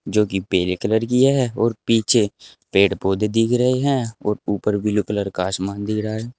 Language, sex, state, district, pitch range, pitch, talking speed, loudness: Hindi, male, Uttar Pradesh, Saharanpur, 100-115 Hz, 105 Hz, 205 wpm, -20 LUFS